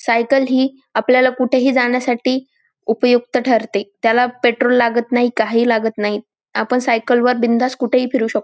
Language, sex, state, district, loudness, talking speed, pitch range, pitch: Marathi, female, Maharashtra, Dhule, -16 LUFS, 150 wpm, 230-255 Hz, 245 Hz